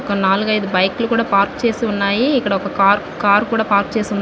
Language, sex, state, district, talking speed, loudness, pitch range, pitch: Telugu, female, Andhra Pradesh, Visakhapatnam, 215 wpm, -16 LUFS, 200-230 Hz, 205 Hz